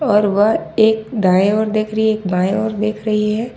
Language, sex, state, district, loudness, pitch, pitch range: Hindi, female, Jharkhand, Ranchi, -16 LUFS, 215 Hz, 205-220 Hz